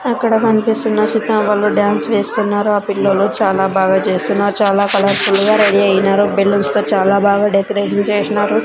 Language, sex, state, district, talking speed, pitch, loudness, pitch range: Telugu, female, Andhra Pradesh, Sri Satya Sai, 160 wpm, 205 Hz, -14 LUFS, 200-215 Hz